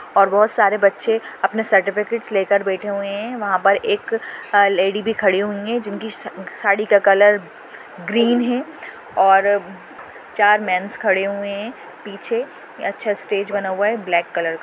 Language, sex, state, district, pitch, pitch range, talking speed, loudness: Hindi, female, Goa, North and South Goa, 205 Hz, 195-220 Hz, 165 wpm, -18 LUFS